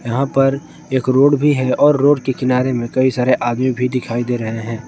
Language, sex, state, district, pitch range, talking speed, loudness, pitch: Hindi, male, Jharkhand, Garhwa, 125-135 Hz, 235 wpm, -16 LUFS, 130 Hz